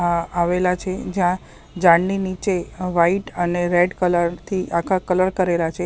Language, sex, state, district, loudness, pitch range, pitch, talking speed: Gujarati, female, Maharashtra, Mumbai Suburban, -20 LUFS, 175-185 Hz, 180 Hz, 155 wpm